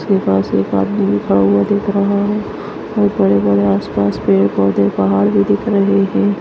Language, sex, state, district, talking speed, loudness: Hindi, female, Maharashtra, Nagpur, 180 wpm, -14 LUFS